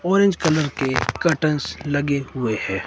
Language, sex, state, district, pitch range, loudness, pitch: Hindi, male, Himachal Pradesh, Shimla, 130-160 Hz, -21 LUFS, 145 Hz